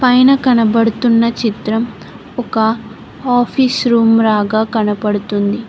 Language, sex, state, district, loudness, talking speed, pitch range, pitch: Telugu, female, Telangana, Mahabubabad, -13 LUFS, 85 wpm, 220-245 Hz, 225 Hz